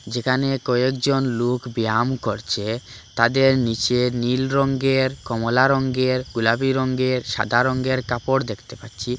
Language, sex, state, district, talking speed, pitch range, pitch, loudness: Bengali, male, Assam, Hailakandi, 115 wpm, 115-130 Hz, 125 Hz, -21 LUFS